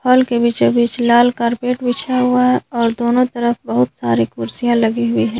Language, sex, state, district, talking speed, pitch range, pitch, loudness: Hindi, female, Jharkhand, Garhwa, 200 wpm, 225-250 Hz, 235 Hz, -16 LUFS